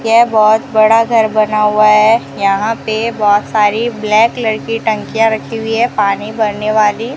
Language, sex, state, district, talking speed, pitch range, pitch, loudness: Hindi, female, Rajasthan, Bikaner, 185 wpm, 215-225 Hz, 220 Hz, -12 LUFS